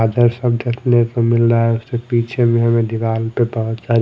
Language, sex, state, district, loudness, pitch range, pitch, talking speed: Hindi, male, Odisha, Malkangiri, -16 LUFS, 115-120 Hz, 115 Hz, 180 wpm